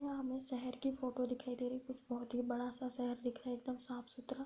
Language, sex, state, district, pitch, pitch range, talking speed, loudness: Hindi, female, Bihar, Bhagalpur, 250 Hz, 245-260 Hz, 240 wpm, -43 LUFS